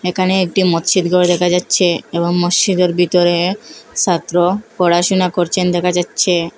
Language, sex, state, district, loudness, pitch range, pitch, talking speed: Bengali, female, Assam, Hailakandi, -14 LUFS, 175-185 Hz, 180 Hz, 130 wpm